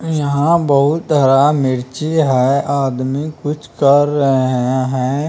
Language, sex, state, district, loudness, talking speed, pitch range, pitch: Hindi, male, Bihar, Araria, -15 LUFS, 115 wpm, 130-150 Hz, 140 Hz